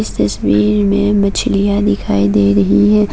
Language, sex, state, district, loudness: Hindi, female, Assam, Kamrup Metropolitan, -13 LUFS